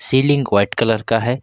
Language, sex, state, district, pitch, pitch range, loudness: Hindi, male, Jharkhand, Ranchi, 115 Hz, 110-130 Hz, -17 LUFS